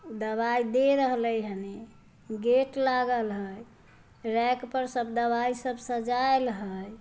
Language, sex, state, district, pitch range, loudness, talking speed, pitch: Magahi, female, Bihar, Samastipur, 220-250 Hz, -28 LUFS, 120 wpm, 240 Hz